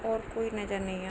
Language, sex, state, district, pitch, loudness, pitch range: Hindi, female, Jharkhand, Sahebganj, 210 Hz, -34 LUFS, 190-225 Hz